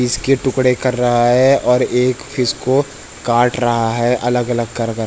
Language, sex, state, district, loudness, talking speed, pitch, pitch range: Hindi, male, Uttarakhand, Tehri Garhwal, -15 LUFS, 200 wpm, 125 Hz, 120-130 Hz